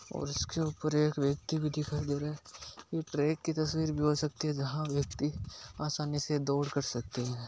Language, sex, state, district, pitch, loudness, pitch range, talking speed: Hindi, male, Rajasthan, Nagaur, 150 Hz, -33 LUFS, 145-155 Hz, 210 wpm